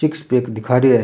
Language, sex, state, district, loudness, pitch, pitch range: Rajasthani, male, Rajasthan, Churu, -17 LUFS, 125 Hz, 120-150 Hz